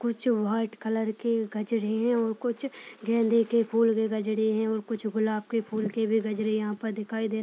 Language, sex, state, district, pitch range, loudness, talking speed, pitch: Hindi, female, Uttar Pradesh, Deoria, 215-230 Hz, -28 LUFS, 220 wpm, 220 Hz